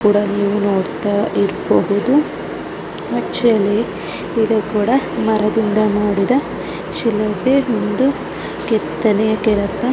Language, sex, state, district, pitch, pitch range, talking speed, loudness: Kannada, female, Karnataka, Dakshina Kannada, 215 Hz, 205-230 Hz, 50 wpm, -17 LUFS